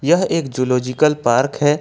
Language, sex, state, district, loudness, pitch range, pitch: Hindi, male, Jharkhand, Ranchi, -17 LUFS, 130-155 Hz, 145 Hz